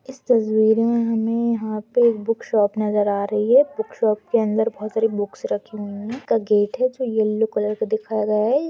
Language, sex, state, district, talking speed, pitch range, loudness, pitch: Hindi, female, Goa, North and South Goa, 225 wpm, 210-230 Hz, -21 LUFS, 220 Hz